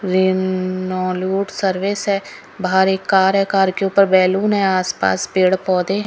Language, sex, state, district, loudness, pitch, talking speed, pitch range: Hindi, female, Haryana, Rohtak, -17 LUFS, 190 Hz, 170 wpm, 185-195 Hz